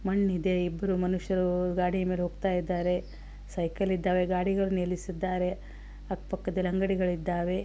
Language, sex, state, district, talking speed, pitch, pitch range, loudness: Kannada, female, Karnataka, Belgaum, 115 wpm, 185 Hz, 180-190 Hz, -30 LUFS